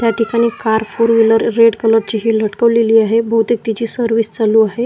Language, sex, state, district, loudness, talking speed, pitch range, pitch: Marathi, male, Maharashtra, Washim, -14 LUFS, 200 wpm, 225-230 Hz, 225 Hz